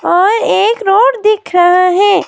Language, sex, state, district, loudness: Hindi, female, Himachal Pradesh, Shimla, -10 LUFS